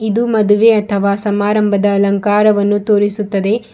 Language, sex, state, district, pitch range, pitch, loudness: Kannada, female, Karnataka, Bidar, 205-215 Hz, 205 Hz, -13 LUFS